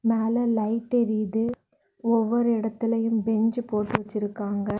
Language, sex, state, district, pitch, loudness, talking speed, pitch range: Tamil, female, Tamil Nadu, Kanyakumari, 225 Hz, -25 LUFS, 100 wpm, 215-235 Hz